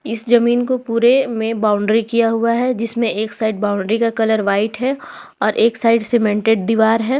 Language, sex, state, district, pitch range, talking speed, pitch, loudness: Hindi, female, Jharkhand, Ranchi, 220-240 Hz, 190 wpm, 230 Hz, -16 LUFS